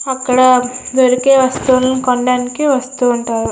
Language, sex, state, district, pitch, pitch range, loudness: Telugu, female, Andhra Pradesh, Srikakulam, 255 Hz, 250-260 Hz, -13 LUFS